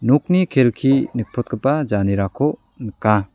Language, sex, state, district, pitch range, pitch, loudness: Garo, male, Meghalaya, South Garo Hills, 105-140 Hz, 125 Hz, -19 LUFS